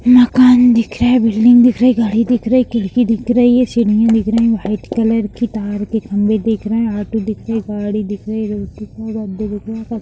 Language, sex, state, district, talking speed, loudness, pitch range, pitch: Hindi, female, Bihar, Lakhisarai, 220 wpm, -14 LUFS, 215-240 Hz, 225 Hz